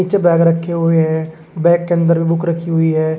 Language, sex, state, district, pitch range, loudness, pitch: Hindi, male, Uttar Pradesh, Shamli, 160-170 Hz, -15 LUFS, 165 Hz